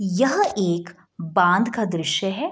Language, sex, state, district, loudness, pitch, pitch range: Hindi, female, Bihar, Madhepura, -21 LUFS, 190 Hz, 175-215 Hz